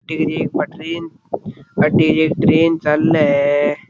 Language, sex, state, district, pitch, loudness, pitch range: Rajasthani, male, Rajasthan, Churu, 160 Hz, -16 LUFS, 150-165 Hz